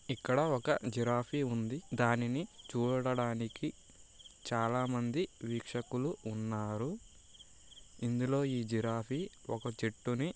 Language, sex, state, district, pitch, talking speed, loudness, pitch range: Telugu, male, Andhra Pradesh, Srikakulam, 120 Hz, 95 wpm, -36 LUFS, 115-130 Hz